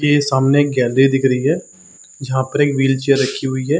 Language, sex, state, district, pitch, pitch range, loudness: Hindi, male, Chhattisgarh, Sarguja, 135 Hz, 130-145 Hz, -16 LUFS